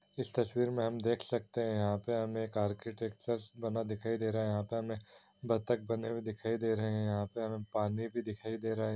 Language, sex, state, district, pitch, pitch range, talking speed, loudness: Hindi, male, Bihar, East Champaran, 115 Hz, 110-115 Hz, 240 wpm, -36 LUFS